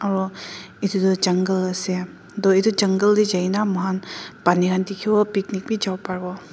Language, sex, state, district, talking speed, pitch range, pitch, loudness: Nagamese, female, Nagaland, Dimapur, 155 wpm, 185-200 Hz, 190 Hz, -21 LUFS